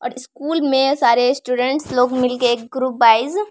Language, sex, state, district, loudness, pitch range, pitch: Hindi, female, Bihar, Samastipur, -17 LUFS, 245-270 Hz, 255 Hz